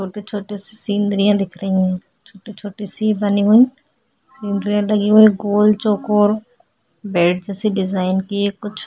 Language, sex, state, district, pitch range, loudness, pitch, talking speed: Hindi, female, Uttarakhand, Tehri Garhwal, 200-215 Hz, -17 LUFS, 205 Hz, 140 wpm